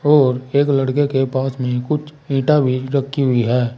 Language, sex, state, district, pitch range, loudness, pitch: Hindi, male, Uttar Pradesh, Saharanpur, 130-145 Hz, -18 LUFS, 135 Hz